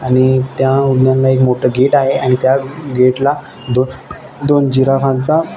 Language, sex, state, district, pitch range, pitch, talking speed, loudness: Marathi, male, Maharashtra, Nagpur, 130-140 Hz, 130 Hz, 140 wpm, -13 LUFS